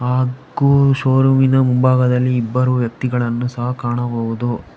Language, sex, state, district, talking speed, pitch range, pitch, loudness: Kannada, male, Karnataka, Bangalore, 100 wpm, 120-130 Hz, 125 Hz, -16 LUFS